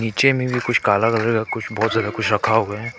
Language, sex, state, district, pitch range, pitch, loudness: Hindi, male, Arunachal Pradesh, Papum Pare, 110-120 Hz, 115 Hz, -19 LUFS